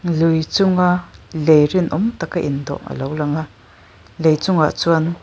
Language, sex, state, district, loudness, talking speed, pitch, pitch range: Mizo, female, Mizoram, Aizawl, -18 LUFS, 125 wpm, 160 Hz, 150-175 Hz